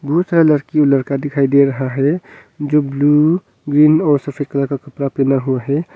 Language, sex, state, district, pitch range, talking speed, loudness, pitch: Hindi, male, Arunachal Pradesh, Longding, 140-150 Hz, 200 wpm, -15 LUFS, 145 Hz